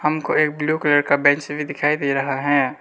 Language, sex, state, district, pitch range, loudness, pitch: Hindi, male, Arunachal Pradesh, Lower Dibang Valley, 140-150 Hz, -19 LUFS, 145 Hz